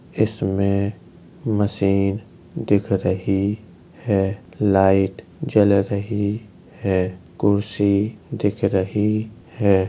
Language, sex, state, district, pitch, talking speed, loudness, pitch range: Hindi, male, Uttar Pradesh, Jalaun, 100 Hz, 80 wpm, -21 LUFS, 95-105 Hz